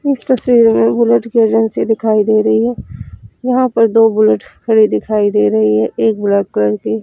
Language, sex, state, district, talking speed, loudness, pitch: Hindi, female, Chandigarh, Chandigarh, 195 wpm, -13 LUFS, 220 Hz